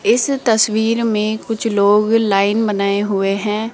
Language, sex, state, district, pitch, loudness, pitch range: Hindi, female, Rajasthan, Jaipur, 220 Hz, -16 LUFS, 205-225 Hz